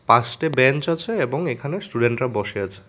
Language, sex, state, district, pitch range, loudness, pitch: Bengali, male, Tripura, West Tripura, 115-160 Hz, -22 LUFS, 130 Hz